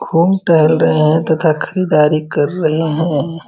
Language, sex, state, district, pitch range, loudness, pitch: Hindi, male, Uttar Pradesh, Varanasi, 155-165 Hz, -14 LUFS, 160 Hz